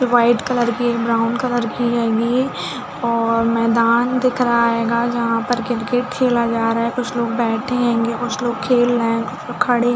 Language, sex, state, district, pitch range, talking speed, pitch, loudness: Hindi, female, Chhattisgarh, Bilaspur, 230-245 Hz, 200 wpm, 235 Hz, -18 LUFS